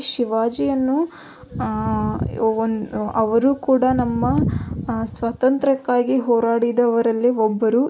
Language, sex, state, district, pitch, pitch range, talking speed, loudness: Kannada, female, Karnataka, Belgaum, 235 Hz, 225-260 Hz, 60 wpm, -20 LUFS